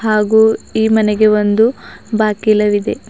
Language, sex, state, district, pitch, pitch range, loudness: Kannada, female, Karnataka, Bidar, 215 Hz, 210-220 Hz, -13 LUFS